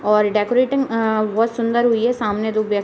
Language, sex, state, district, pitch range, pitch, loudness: Hindi, female, Uttar Pradesh, Deoria, 210-235 Hz, 220 Hz, -18 LUFS